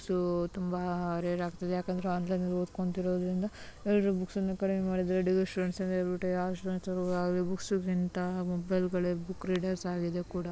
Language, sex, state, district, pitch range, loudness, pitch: Kannada, female, Karnataka, Mysore, 180-185 Hz, -33 LUFS, 180 Hz